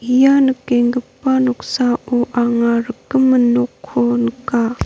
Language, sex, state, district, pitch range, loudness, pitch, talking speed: Garo, female, Meghalaya, North Garo Hills, 235-260 Hz, -16 LUFS, 245 Hz, 85 wpm